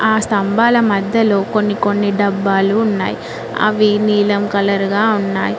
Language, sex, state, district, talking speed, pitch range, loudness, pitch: Telugu, female, Telangana, Mahabubabad, 130 wpm, 200-215 Hz, -15 LUFS, 205 Hz